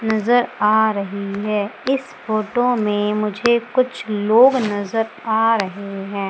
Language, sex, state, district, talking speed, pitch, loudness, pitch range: Hindi, female, Madhya Pradesh, Umaria, 135 wpm, 215 Hz, -19 LUFS, 205-235 Hz